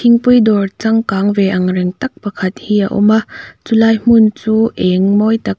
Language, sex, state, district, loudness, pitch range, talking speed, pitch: Mizo, female, Mizoram, Aizawl, -13 LUFS, 195-225 Hz, 195 wpm, 215 Hz